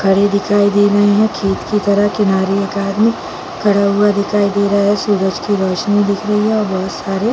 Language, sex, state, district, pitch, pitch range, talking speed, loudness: Hindi, female, Chhattisgarh, Bilaspur, 205 Hz, 200-205 Hz, 205 wpm, -14 LUFS